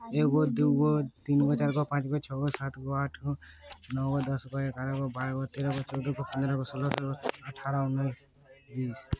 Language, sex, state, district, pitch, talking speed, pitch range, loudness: Bajjika, male, Bihar, Vaishali, 135 Hz, 130 wpm, 135-140 Hz, -31 LUFS